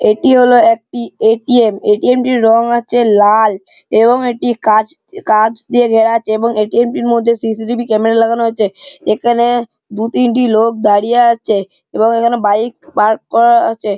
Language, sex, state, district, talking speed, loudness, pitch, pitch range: Bengali, male, West Bengal, Malda, 160 wpm, -12 LUFS, 230 Hz, 220-240 Hz